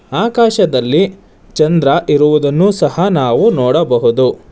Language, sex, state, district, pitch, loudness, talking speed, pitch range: Kannada, male, Karnataka, Bangalore, 170 Hz, -12 LUFS, 80 wpm, 150-225 Hz